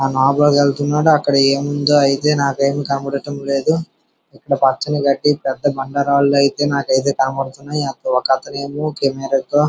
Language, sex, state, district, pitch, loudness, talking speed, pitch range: Telugu, male, Andhra Pradesh, Srikakulam, 140 Hz, -17 LUFS, 110 wpm, 135-145 Hz